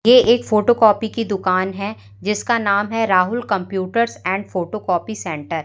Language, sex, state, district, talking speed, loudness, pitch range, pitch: Hindi, female, Madhya Pradesh, Umaria, 180 wpm, -18 LUFS, 185-225 Hz, 200 Hz